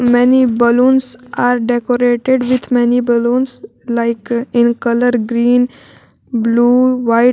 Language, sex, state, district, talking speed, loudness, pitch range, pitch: English, female, Jharkhand, Garhwa, 105 wpm, -13 LUFS, 235-250 Hz, 245 Hz